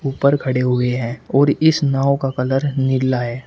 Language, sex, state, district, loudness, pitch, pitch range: Hindi, male, Uttar Pradesh, Shamli, -18 LUFS, 135 Hz, 125-140 Hz